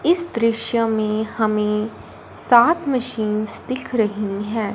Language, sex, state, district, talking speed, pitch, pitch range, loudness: Hindi, female, Punjab, Fazilka, 115 wpm, 225 Hz, 215-245 Hz, -20 LUFS